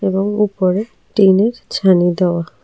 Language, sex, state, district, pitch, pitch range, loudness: Bengali, female, Tripura, South Tripura, 195 Hz, 180-205 Hz, -15 LUFS